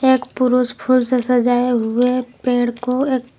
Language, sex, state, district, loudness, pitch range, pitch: Hindi, female, Jharkhand, Garhwa, -17 LUFS, 245-255 Hz, 250 Hz